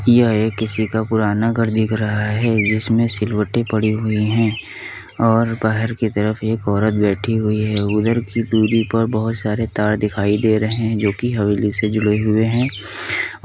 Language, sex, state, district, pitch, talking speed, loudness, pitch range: Hindi, male, Uttar Pradesh, Hamirpur, 110 Hz, 195 wpm, -18 LUFS, 105-115 Hz